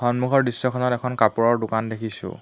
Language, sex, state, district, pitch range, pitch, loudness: Assamese, male, Assam, Hailakandi, 110-125 Hz, 120 Hz, -22 LUFS